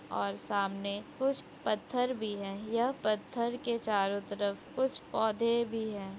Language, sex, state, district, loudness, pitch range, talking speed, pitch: Hindi, female, Uttarakhand, Tehri Garhwal, -33 LUFS, 200-235 Hz, 145 wpm, 215 Hz